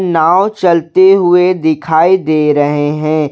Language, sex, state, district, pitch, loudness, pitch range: Hindi, male, Jharkhand, Garhwa, 160 Hz, -10 LUFS, 150-185 Hz